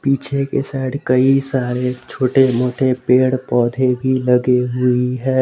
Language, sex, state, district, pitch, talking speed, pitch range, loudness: Hindi, male, Jharkhand, Garhwa, 130 Hz, 145 wpm, 125-135 Hz, -17 LUFS